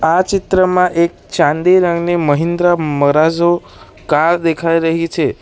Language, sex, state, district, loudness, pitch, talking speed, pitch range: Gujarati, male, Gujarat, Valsad, -14 LUFS, 170 Hz, 120 wpm, 160-175 Hz